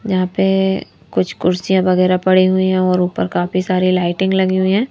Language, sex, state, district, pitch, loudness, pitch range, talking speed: Hindi, female, Madhya Pradesh, Bhopal, 185 Hz, -16 LUFS, 185-190 Hz, 195 wpm